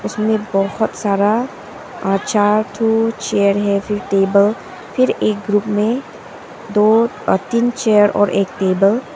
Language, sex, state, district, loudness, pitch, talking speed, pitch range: Hindi, female, Arunachal Pradesh, Papum Pare, -16 LUFS, 210 Hz, 140 wpm, 200-225 Hz